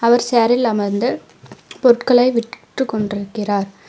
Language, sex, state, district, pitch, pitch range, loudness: Tamil, female, Tamil Nadu, Namakkal, 230 Hz, 205-245 Hz, -17 LUFS